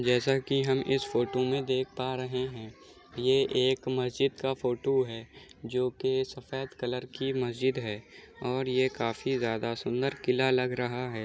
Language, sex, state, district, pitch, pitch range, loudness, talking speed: Hindi, male, Uttar Pradesh, Muzaffarnagar, 130 Hz, 125-130 Hz, -30 LUFS, 170 wpm